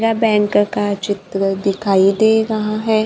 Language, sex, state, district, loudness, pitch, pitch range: Hindi, female, Maharashtra, Gondia, -16 LUFS, 205 Hz, 200-220 Hz